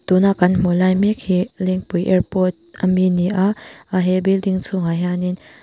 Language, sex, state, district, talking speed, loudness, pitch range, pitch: Mizo, female, Mizoram, Aizawl, 180 wpm, -18 LUFS, 180-190 Hz, 185 Hz